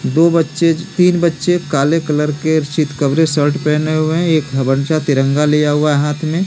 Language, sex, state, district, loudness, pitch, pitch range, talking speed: Hindi, male, Delhi, New Delhi, -14 LUFS, 155 Hz, 145-165 Hz, 195 wpm